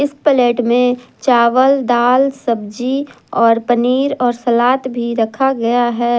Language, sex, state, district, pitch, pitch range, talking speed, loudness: Hindi, female, Jharkhand, Garhwa, 245 Hz, 240-265 Hz, 135 wpm, -14 LUFS